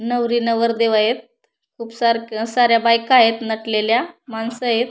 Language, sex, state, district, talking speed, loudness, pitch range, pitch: Marathi, female, Maharashtra, Pune, 110 wpm, -18 LUFS, 225-235 Hz, 230 Hz